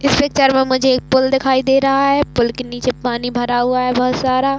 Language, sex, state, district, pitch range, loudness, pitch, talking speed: Hindi, female, Chhattisgarh, Raigarh, 250-270 Hz, -15 LUFS, 260 Hz, 260 wpm